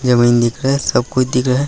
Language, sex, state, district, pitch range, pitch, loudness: Hindi, male, Chhattisgarh, Raigarh, 120-135 Hz, 125 Hz, -15 LUFS